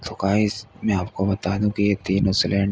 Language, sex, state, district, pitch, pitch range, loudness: Hindi, male, Uttar Pradesh, Hamirpur, 100 Hz, 95-105 Hz, -22 LUFS